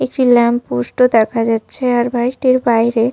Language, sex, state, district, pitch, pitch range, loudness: Bengali, female, Jharkhand, Sahebganj, 240 Hz, 230-250 Hz, -14 LUFS